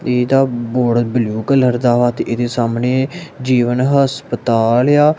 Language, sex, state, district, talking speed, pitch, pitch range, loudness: Punjabi, male, Punjab, Kapurthala, 150 wpm, 125 Hz, 120-135 Hz, -15 LUFS